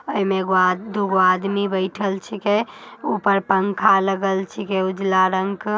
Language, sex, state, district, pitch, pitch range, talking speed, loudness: Magahi, female, Bihar, Samastipur, 195 Hz, 190-205 Hz, 155 wpm, -20 LUFS